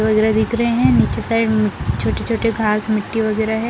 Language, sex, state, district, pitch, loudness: Hindi, female, Bihar, Patna, 215 Hz, -17 LUFS